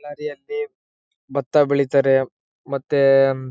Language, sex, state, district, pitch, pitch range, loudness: Kannada, male, Karnataka, Bellary, 140 Hz, 135-145 Hz, -19 LUFS